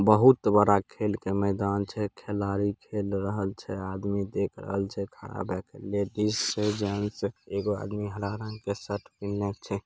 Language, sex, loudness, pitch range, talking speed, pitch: Angika, male, -29 LUFS, 100-105 Hz, 150 wpm, 100 Hz